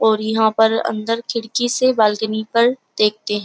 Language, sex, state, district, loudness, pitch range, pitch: Hindi, female, Uttar Pradesh, Jyotiba Phule Nagar, -18 LUFS, 215-230 Hz, 220 Hz